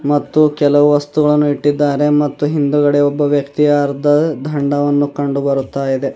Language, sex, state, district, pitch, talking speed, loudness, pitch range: Kannada, male, Karnataka, Bidar, 145 Hz, 105 wpm, -14 LUFS, 140-150 Hz